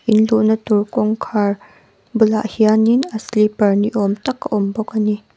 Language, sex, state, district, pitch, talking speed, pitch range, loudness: Mizo, female, Mizoram, Aizawl, 215 Hz, 180 wpm, 210-220 Hz, -17 LUFS